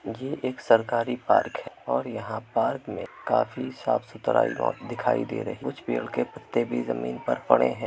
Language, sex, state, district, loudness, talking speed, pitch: Hindi, male, Uttar Pradesh, Muzaffarnagar, -27 LUFS, 190 wpm, 115 Hz